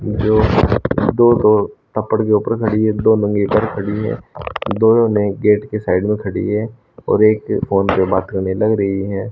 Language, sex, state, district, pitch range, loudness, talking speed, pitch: Hindi, male, Haryana, Rohtak, 100-110 Hz, -16 LUFS, 195 wpm, 105 Hz